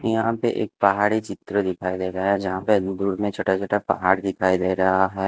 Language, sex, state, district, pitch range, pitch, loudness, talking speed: Hindi, male, Himachal Pradesh, Shimla, 95-105 Hz, 95 Hz, -22 LUFS, 225 wpm